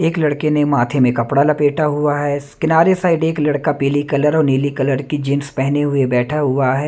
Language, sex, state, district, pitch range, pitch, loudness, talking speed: Hindi, male, Maharashtra, Mumbai Suburban, 140-150 Hz, 145 Hz, -16 LUFS, 225 wpm